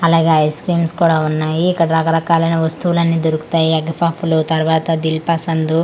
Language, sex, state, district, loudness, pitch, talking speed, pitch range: Telugu, female, Andhra Pradesh, Manyam, -15 LUFS, 165 Hz, 155 wpm, 160-165 Hz